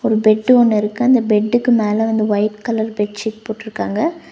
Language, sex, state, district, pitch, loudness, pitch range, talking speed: Tamil, female, Tamil Nadu, Nilgiris, 220 Hz, -16 LUFS, 215-240 Hz, 165 wpm